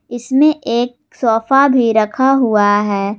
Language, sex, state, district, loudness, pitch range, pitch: Hindi, female, Jharkhand, Garhwa, -14 LUFS, 215-265 Hz, 240 Hz